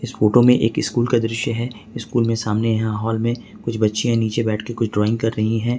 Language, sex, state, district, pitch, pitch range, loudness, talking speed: Hindi, male, Jharkhand, Ranchi, 115 Hz, 110-120 Hz, -20 LUFS, 230 wpm